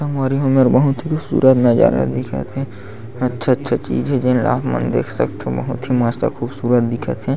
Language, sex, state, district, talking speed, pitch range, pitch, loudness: Chhattisgarhi, male, Chhattisgarh, Sarguja, 195 wpm, 115-135 Hz, 125 Hz, -17 LUFS